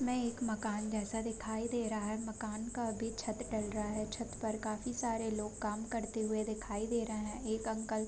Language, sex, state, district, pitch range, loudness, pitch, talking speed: Hindi, female, Bihar, Sitamarhi, 215-230 Hz, -38 LUFS, 220 Hz, 225 wpm